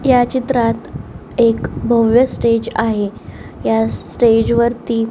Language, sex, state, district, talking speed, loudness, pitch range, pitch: Marathi, female, Maharashtra, Solapur, 115 wpm, -16 LUFS, 210-240 Hz, 230 Hz